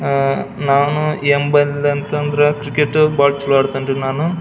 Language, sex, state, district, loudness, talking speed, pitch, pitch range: Kannada, male, Karnataka, Belgaum, -16 LUFS, 165 wpm, 145 Hz, 140-150 Hz